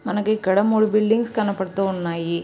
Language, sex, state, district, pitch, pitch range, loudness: Telugu, female, Andhra Pradesh, Srikakulam, 205 Hz, 190-215 Hz, -21 LUFS